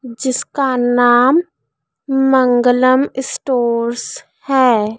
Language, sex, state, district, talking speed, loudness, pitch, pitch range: Hindi, female, Madhya Pradesh, Dhar, 60 wpm, -14 LUFS, 255 Hz, 245-265 Hz